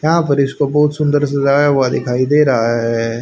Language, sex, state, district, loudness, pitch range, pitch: Hindi, male, Haryana, Rohtak, -14 LUFS, 125-145 Hz, 140 Hz